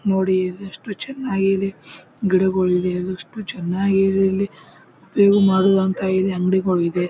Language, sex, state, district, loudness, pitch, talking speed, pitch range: Kannada, male, Karnataka, Bijapur, -19 LUFS, 190 Hz, 125 wpm, 185-195 Hz